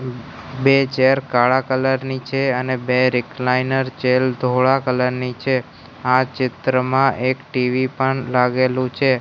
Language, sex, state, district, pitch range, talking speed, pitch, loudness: Gujarati, male, Gujarat, Gandhinagar, 125-130 Hz, 135 wpm, 130 Hz, -18 LUFS